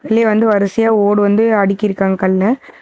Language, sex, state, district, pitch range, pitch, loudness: Tamil, female, Tamil Nadu, Namakkal, 200-225 Hz, 210 Hz, -13 LUFS